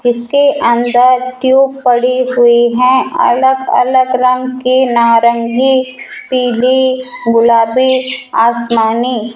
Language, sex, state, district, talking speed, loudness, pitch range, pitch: Hindi, female, Rajasthan, Jaipur, 95 wpm, -11 LUFS, 235-260 Hz, 250 Hz